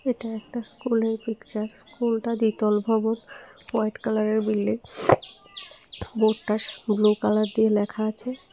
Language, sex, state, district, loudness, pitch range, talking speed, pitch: Bengali, female, Tripura, South Tripura, -25 LUFS, 215-230 Hz, 105 wpm, 220 Hz